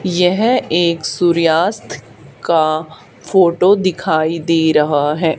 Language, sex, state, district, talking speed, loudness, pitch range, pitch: Hindi, female, Haryana, Charkhi Dadri, 100 wpm, -14 LUFS, 155-180 Hz, 165 Hz